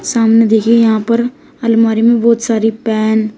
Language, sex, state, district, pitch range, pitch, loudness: Hindi, female, Uttar Pradesh, Shamli, 220-235 Hz, 225 Hz, -12 LUFS